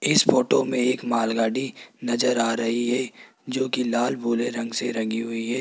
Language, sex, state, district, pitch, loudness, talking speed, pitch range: Hindi, male, Rajasthan, Jaipur, 120 Hz, -24 LUFS, 195 wpm, 115-125 Hz